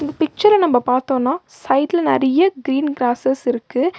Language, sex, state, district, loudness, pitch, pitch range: Tamil, female, Tamil Nadu, Nilgiris, -17 LUFS, 270 Hz, 255-335 Hz